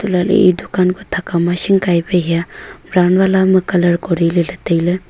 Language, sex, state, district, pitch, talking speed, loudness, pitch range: Wancho, female, Arunachal Pradesh, Longding, 180 Hz, 200 wpm, -15 LUFS, 175-190 Hz